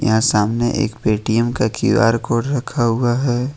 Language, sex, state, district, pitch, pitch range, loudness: Hindi, male, Jharkhand, Ranchi, 115 Hz, 110-120 Hz, -17 LUFS